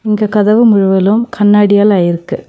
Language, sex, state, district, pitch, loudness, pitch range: Tamil, female, Tamil Nadu, Nilgiris, 210 Hz, -10 LUFS, 195-215 Hz